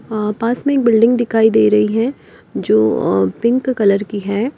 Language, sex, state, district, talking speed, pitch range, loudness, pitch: Hindi, female, Uttar Pradesh, Lalitpur, 195 wpm, 200-240 Hz, -15 LUFS, 220 Hz